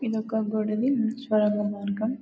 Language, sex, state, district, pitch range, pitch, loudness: Telugu, female, Telangana, Karimnagar, 210-235 Hz, 215 Hz, -26 LUFS